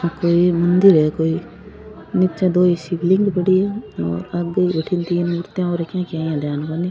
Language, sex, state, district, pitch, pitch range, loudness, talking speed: Rajasthani, female, Rajasthan, Churu, 175 Hz, 165-180 Hz, -18 LUFS, 155 wpm